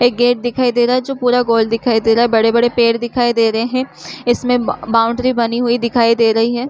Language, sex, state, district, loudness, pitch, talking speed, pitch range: Hindi, female, Chhattisgarh, Korba, -15 LUFS, 240 Hz, 235 wpm, 230-245 Hz